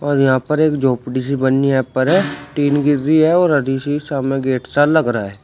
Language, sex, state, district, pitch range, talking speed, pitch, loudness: Hindi, male, Uttar Pradesh, Shamli, 130-150 Hz, 245 wpm, 140 Hz, -16 LUFS